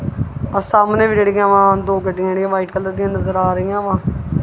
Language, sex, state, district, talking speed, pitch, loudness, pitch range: Punjabi, female, Punjab, Kapurthala, 190 wpm, 195 Hz, -16 LUFS, 190-200 Hz